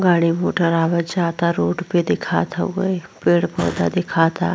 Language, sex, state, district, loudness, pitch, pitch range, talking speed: Hindi, female, Bihar, Vaishali, -19 LUFS, 170 Hz, 165-175 Hz, 145 wpm